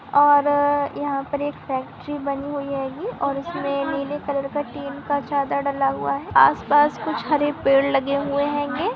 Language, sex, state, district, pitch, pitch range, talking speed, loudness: Hindi, female, Maharashtra, Aurangabad, 285 Hz, 275-290 Hz, 185 wpm, -22 LUFS